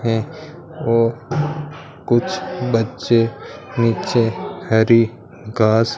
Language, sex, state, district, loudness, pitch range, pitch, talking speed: Hindi, male, Rajasthan, Bikaner, -19 LUFS, 115-150 Hz, 120 Hz, 70 wpm